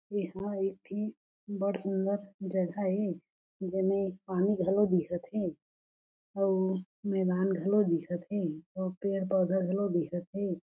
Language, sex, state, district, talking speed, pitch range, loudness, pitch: Chhattisgarhi, female, Chhattisgarh, Jashpur, 120 wpm, 185-200 Hz, -32 LUFS, 190 Hz